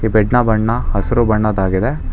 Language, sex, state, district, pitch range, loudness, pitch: Kannada, male, Karnataka, Bangalore, 95-115 Hz, -16 LUFS, 110 Hz